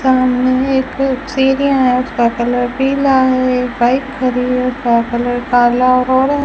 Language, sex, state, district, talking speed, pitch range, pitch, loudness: Hindi, female, Rajasthan, Bikaner, 160 wpm, 245-265 Hz, 255 Hz, -14 LUFS